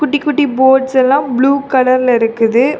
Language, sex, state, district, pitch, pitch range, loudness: Tamil, female, Tamil Nadu, Kanyakumari, 265 Hz, 255-280 Hz, -12 LUFS